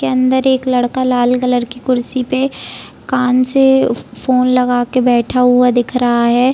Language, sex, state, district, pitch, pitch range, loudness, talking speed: Hindi, female, Bihar, East Champaran, 250 Hz, 245-255 Hz, -14 LUFS, 175 wpm